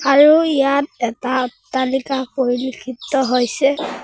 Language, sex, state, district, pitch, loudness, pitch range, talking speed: Assamese, female, Assam, Sonitpur, 265 Hz, -17 LUFS, 255-275 Hz, 90 wpm